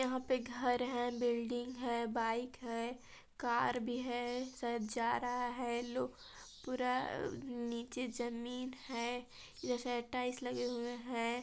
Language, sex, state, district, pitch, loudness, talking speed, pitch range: Hindi, female, Chhattisgarh, Balrampur, 245 Hz, -39 LUFS, 125 wpm, 235-250 Hz